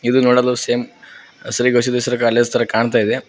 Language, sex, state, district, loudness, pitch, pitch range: Kannada, male, Karnataka, Koppal, -16 LUFS, 125 Hz, 120-125 Hz